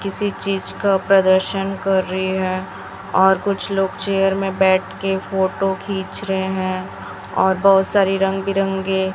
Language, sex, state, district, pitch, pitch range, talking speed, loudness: Hindi, female, Chhattisgarh, Raipur, 195 Hz, 190-195 Hz, 150 wpm, -19 LUFS